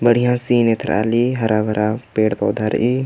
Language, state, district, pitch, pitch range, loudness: Kurukh, Chhattisgarh, Jashpur, 115 Hz, 110-120 Hz, -18 LUFS